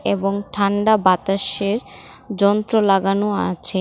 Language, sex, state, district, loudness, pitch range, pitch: Bengali, female, Tripura, West Tripura, -18 LUFS, 195-205 Hz, 200 Hz